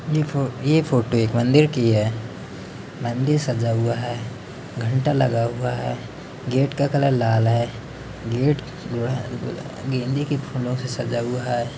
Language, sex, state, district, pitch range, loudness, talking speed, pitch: Hindi, male, Uttar Pradesh, Varanasi, 115-135 Hz, -22 LUFS, 165 wpm, 125 Hz